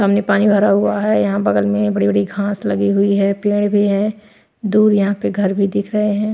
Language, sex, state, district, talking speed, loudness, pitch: Hindi, female, Punjab, Pathankot, 225 wpm, -16 LUFS, 200 Hz